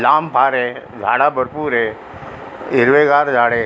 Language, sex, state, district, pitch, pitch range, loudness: Marathi, female, Maharashtra, Aurangabad, 135 Hz, 120-150 Hz, -15 LUFS